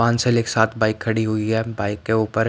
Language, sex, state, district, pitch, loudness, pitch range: Hindi, male, Bihar, Patna, 110 Hz, -21 LUFS, 110-115 Hz